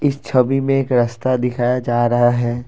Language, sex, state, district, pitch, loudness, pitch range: Hindi, male, Assam, Kamrup Metropolitan, 125 Hz, -17 LUFS, 120-130 Hz